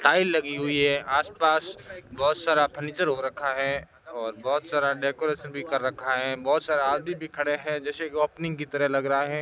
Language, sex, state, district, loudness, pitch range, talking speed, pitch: Hindi, male, Rajasthan, Bikaner, -26 LUFS, 140-155 Hz, 210 wpm, 145 Hz